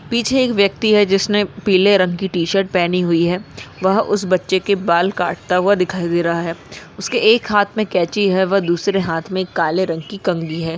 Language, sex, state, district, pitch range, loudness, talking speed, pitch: Hindi, female, Maharashtra, Aurangabad, 170-200 Hz, -17 LUFS, 215 wpm, 185 Hz